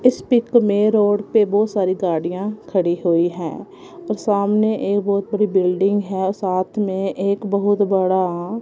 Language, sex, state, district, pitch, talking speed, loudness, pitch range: Hindi, female, Punjab, Kapurthala, 200 Hz, 165 wpm, -19 LUFS, 185-210 Hz